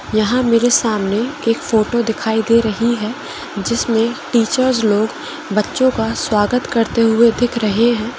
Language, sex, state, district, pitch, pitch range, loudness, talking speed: Hindi, female, Chhattisgarh, Korba, 230 Hz, 220-240 Hz, -16 LUFS, 145 wpm